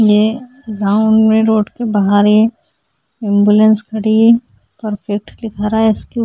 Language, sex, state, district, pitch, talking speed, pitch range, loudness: Hindi, female, Chhattisgarh, Sukma, 220 Hz, 155 wpm, 210-225 Hz, -13 LUFS